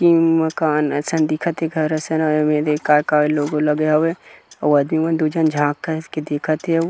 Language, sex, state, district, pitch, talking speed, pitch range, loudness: Chhattisgarhi, male, Chhattisgarh, Kabirdham, 155 Hz, 245 wpm, 150-160 Hz, -18 LUFS